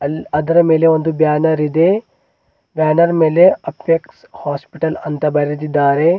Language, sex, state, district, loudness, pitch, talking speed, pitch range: Kannada, male, Karnataka, Bidar, -15 LUFS, 160 Hz, 105 wpm, 150-165 Hz